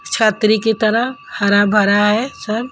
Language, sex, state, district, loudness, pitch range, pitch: Hindi, female, Maharashtra, Mumbai Suburban, -15 LUFS, 210-230 Hz, 215 Hz